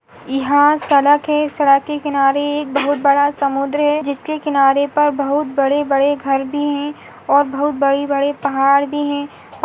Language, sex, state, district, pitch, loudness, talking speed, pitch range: Hindi, female, Goa, North and South Goa, 285 Hz, -16 LUFS, 175 wpm, 275-290 Hz